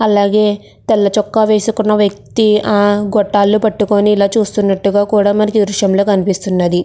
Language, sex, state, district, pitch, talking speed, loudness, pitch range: Telugu, female, Andhra Pradesh, Krishna, 205 Hz, 130 wpm, -13 LUFS, 200-215 Hz